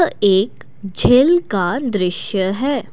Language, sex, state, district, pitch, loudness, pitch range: Hindi, female, Assam, Kamrup Metropolitan, 205 Hz, -17 LUFS, 190-270 Hz